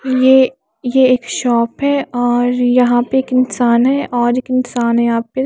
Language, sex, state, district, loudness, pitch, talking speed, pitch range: Hindi, female, Maharashtra, Mumbai Suburban, -14 LUFS, 250 Hz, 200 wpm, 240-260 Hz